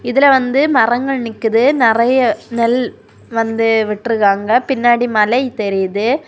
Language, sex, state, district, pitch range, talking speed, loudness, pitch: Tamil, female, Tamil Nadu, Kanyakumari, 225-260 Hz, 95 wpm, -14 LUFS, 235 Hz